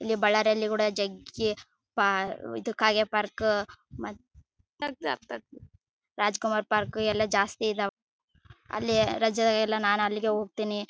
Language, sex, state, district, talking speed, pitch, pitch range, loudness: Kannada, female, Karnataka, Bellary, 105 wpm, 215 Hz, 210-220 Hz, -27 LUFS